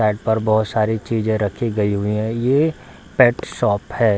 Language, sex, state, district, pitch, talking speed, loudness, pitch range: Hindi, male, Bihar, Darbhanga, 110 Hz, 185 wpm, -19 LUFS, 105-115 Hz